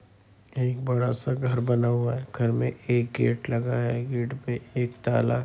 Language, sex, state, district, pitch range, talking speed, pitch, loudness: Hindi, male, Bihar, Madhepura, 120-125 Hz, 185 wpm, 120 Hz, -27 LUFS